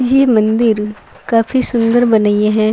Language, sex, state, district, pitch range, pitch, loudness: Sadri, female, Chhattisgarh, Jashpur, 215-240 Hz, 225 Hz, -13 LUFS